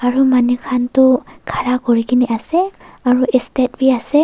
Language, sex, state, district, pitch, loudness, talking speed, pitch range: Nagamese, female, Nagaland, Dimapur, 255 Hz, -16 LUFS, 155 wpm, 245-265 Hz